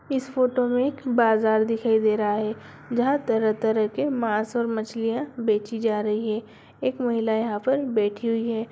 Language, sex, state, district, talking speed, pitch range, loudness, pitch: Hindi, female, Bihar, Bhagalpur, 170 wpm, 220-245 Hz, -24 LUFS, 225 Hz